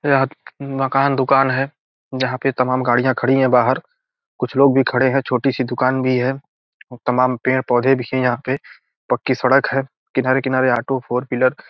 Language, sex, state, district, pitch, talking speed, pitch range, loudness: Hindi, male, Bihar, Gopalganj, 130 Hz, 180 wpm, 125-135 Hz, -18 LUFS